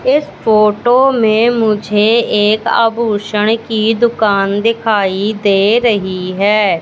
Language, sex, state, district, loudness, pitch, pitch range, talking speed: Hindi, female, Madhya Pradesh, Katni, -12 LUFS, 215 Hz, 205-230 Hz, 105 wpm